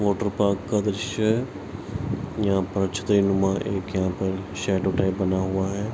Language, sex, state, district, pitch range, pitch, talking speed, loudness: Hindi, male, Bihar, Araria, 95-105 Hz, 100 Hz, 160 wpm, -25 LUFS